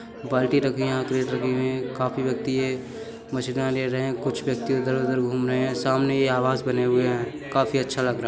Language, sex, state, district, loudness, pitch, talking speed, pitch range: Hindi, male, Uttar Pradesh, Budaun, -24 LUFS, 130 Hz, 230 wpm, 130-135 Hz